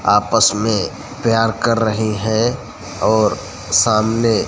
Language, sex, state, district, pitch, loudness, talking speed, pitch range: Hindi, male, Gujarat, Gandhinagar, 110 Hz, -16 LUFS, 105 wpm, 105-115 Hz